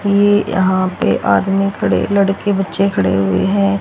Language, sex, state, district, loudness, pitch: Hindi, female, Haryana, Rohtak, -15 LUFS, 195 Hz